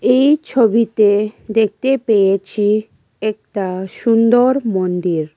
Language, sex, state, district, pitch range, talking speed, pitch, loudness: Bengali, female, Tripura, West Tripura, 195-235 Hz, 80 wpm, 215 Hz, -16 LUFS